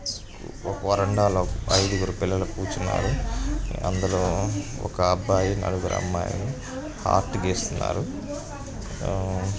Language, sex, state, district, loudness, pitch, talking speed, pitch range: Telugu, male, Andhra Pradesh, Srikakulam, -26 LUFS, 95 Hz, 80 wpm, 95-100 Hz